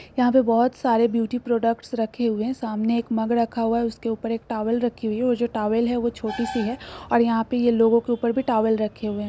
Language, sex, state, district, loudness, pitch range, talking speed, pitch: Marwari, female, Rajasthan, Nagaur, -23 LUFS, 225-240 Hz, 265 wpm, 230 Hz